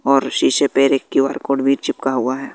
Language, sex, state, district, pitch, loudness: Hindi, female, Bihar, West Champaran, 135 Hz, -17 LUFS